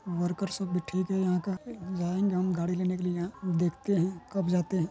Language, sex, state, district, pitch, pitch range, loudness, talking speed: Hindi, male, Bihar, Purnia, 180 Hz, 175-190 Hz, -30 LUFS, 230 wpm